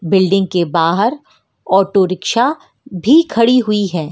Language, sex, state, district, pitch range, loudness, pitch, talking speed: Hindi, female, Madhya Pradesh, Dhar, 185-235 Hz, -14 LUFS, 195 Hz, 130 wpm